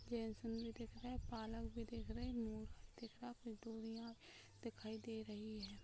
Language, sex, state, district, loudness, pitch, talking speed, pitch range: Hindi, female, Maharashtra, Pune, -50 LUFS, 230 Hz, 155 wpm, 220-230 Hz